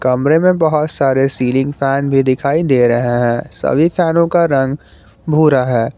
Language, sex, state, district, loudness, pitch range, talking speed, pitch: Hindi, male, Jharkhand, Garhwa, -14 LUFS, 125-155 Hz, 170 wpm, 135 Hz